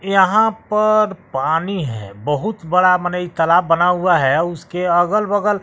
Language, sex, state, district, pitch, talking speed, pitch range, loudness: Hindi, male, Bihar, West Champaran, 180 Hz, 160 wpm, 165-200 Hz, -17 LUFS